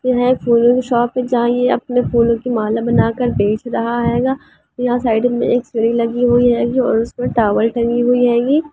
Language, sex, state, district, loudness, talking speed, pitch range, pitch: Hindi, female, Andhra Pradesh, Chittoor, -15 LUFS, 170 wpm, 235-245 Hz, 240 Hz